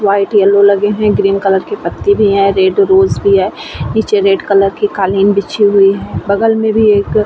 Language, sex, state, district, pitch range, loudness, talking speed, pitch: Hindi, female, Bihar, Vaishali, 195-210 Hz, -11 LUFS, 230 wpm, 200 Hz